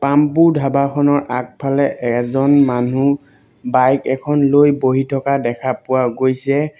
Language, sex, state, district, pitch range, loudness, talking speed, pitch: Assamese, male, Assam, Sonitpur, 130-140 Hz, -16 LUFS, 125 wpm, 135 Hz